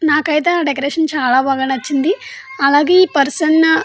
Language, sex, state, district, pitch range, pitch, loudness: Telugu, female, Andhra Pradesh, Anantapur, 275-325 Hz, 300 Hz, -14 LUFS